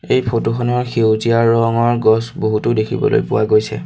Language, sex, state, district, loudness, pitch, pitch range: Assamese, male, Assam, Sonitpur, -16 LUFS, 115 Hz, 110-120 Hz